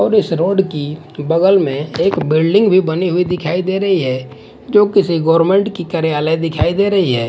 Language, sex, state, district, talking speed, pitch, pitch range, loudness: Hindi, male, Punjab, Fazilka, 195 wpm, 170 Hz, 155-190 Hz, -15 LUFS